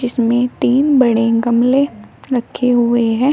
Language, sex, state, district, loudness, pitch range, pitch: Hindi, female, Uttar Pradesh, Shamli, -15 LUFS, 235-255 Hz, 245 Hz